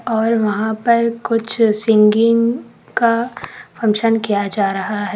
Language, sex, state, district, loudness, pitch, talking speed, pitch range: Hindi, female, Karnataka, Koppal, -16 LUFS, 225 Hz, 130 wpm, 210-230 Hz